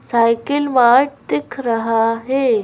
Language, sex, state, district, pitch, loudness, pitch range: Hindi, female, Madhya Pradesh, Bhopal, 240 Hz, -16 LUFS, 230-275 Hz